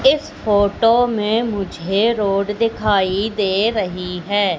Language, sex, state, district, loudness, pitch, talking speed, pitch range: Hindi, female, Madhya Pradesh, Katni, -18 LUFS, 205 Hz, 120 wpm, 195-225 Hz